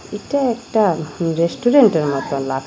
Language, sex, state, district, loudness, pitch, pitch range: Bengali, female, Assam, Hailakandi, -17 LUFS, 170 Hz, 145-240 Hz